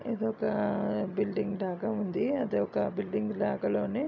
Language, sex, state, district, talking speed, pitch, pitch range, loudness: Telugu, female, Andhra Pradesh, Visakhapatnam, 160 wpm, 205 Hz, 190-215 Hz, -31 LUFS